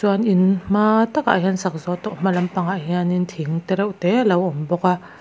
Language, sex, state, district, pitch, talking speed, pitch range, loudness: Mizo, female, Mizoram, Aizawl, 185 Hz, 205 wpm, 180-200 Hz, -20 LUFS